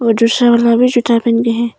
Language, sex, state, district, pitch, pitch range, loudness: Hindi, female, Arunachal Pradesh, Papum Pare, 235 Hz, 230-240 Hz, -12 LUFS